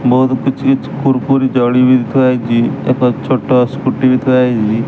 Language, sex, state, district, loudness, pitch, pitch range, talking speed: Odia, male, Odisha, Sambalpur, -13 LUFS, 130 Hz, 125-130 Hz, 150 wpm